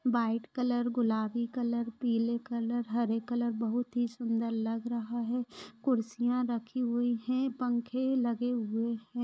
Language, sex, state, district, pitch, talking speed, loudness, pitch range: Hindi, female, Maharashtra, Chandrapur, 235 Hz, 145 wpm, -32 LUFS, 230-245 Hz